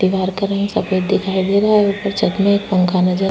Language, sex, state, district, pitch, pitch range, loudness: Hindi, female, Chhattisgarh, Sukma, 195 Hz, 185-200 Hz, -16 LUFS